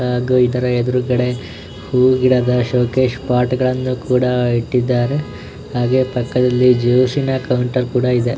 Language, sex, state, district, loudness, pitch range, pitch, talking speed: Kannada, male, Karnataka, Shimoga, -16 LUFS, 125-130 Hz, 125 Hz, 120 wpm